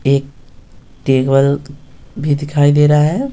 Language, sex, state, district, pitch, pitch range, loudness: Hindi, male, Bihar, Patna, 145 Hz, 135-150 Hz, -14 LUFS